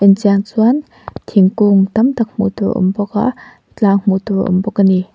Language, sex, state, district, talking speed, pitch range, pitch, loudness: Mizo, female, Mizoram, Aizawl, 210 wpm, 195-220 Hz, 200 Hz, -14 LUFS